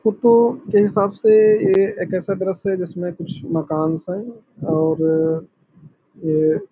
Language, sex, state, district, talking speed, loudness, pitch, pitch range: Hindi, male, Uttar Pradesh, Hamirpur, 145 wpm, -18 LUFS, 185 Hz, 160-205 Hz